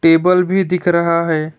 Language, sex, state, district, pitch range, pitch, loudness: Hindi, male, West Bengal, Alipurduar, 165-180 Hz, 170 Hz, -14 LUFS